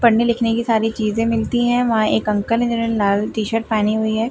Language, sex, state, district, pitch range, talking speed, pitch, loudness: Hindi, female, Bihar, Gopalganj, 215-230 Hz, 235 wpm, 225 Hz, -18 LUFS